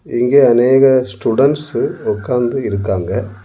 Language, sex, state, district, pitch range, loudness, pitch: Tamil, male, Tamil Nadu, Kanyakumari, 100-130 Hz, -14 LUFS, 120 Hz